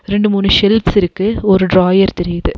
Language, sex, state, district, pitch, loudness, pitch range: Tamil, female, Tamil Nadu, Nilgiris, 195 Hz, -12 LUFS, 185-205 Hz